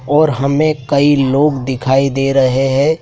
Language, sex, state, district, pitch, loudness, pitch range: Hindi, male, Madhya Pradesh, Dhar, 140 Hz, -13 LUFS, 135-145 Hz